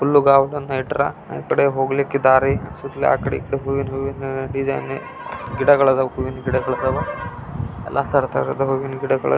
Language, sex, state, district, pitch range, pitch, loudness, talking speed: Kannada, male, Karnataka, Belgaum, 130-140 Hz, 135 Hz, -20 LUFS, 140 wpm